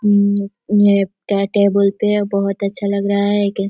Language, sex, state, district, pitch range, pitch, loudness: Hindi, female, Chhattisgarh, Korba, 200-205 Hz, 200 Hz, -16 LUFS